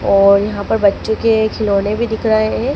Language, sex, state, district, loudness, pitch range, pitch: Hindi, female, Madhya Pradesh, Dhar, -14 LUFS, 200-220 Hz, 220 Hz